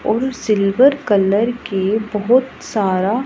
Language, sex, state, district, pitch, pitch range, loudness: Hindi, female, Punjab, Pathankot, 215 Hz, 200-250 Hz, -17 LUFS